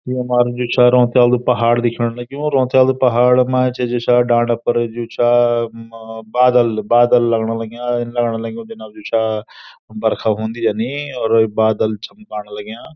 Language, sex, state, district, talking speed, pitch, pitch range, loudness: Garhwali, male, Uttarakhand, Uttarkashi, 170 wpm, 120 Hz, 115-125 Hz, -16 LUFS